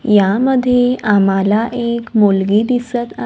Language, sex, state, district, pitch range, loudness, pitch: Marathi, female, Maharashtra, Gondia, 205-245 Hz, -14 LUFS, 230 Hz